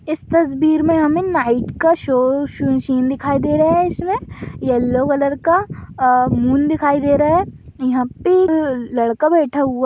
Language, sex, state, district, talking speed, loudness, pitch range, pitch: Bhojpuri, female, Uttar Pradesh, Gorakhpur, 170 wpm, -16 LUFS, 260-320 Hz, 285 Hz